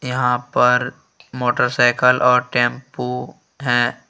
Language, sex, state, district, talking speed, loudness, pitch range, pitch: Hindi, male, Jharkhand, Ranchi, 90 wpm, -18 LUFS, 120-125 Hz, 125 Hz